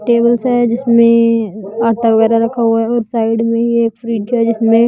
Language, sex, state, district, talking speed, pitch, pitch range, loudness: Hindi, female, Bihar, Patna, 185 wpm, 230 Hz, 225-235 Hz, -13 LUFS